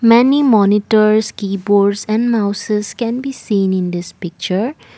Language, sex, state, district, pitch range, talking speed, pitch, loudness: English, female, Assam, Kamrup Metropolitan, 200-230 Hz, 130 wpm, 210 Hz, -15 LUFS